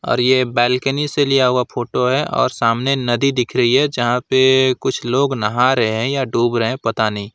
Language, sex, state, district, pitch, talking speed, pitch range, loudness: Hindi, male, West Bengal, Alipurduar, 125 Hz, 220 wpm, 120-135 Hz, -16 LUFS